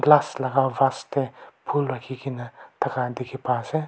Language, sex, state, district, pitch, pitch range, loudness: Nagamese, male, Nagaland, Kohima, 130 Hz, 130-140 Hz, -25 LUFS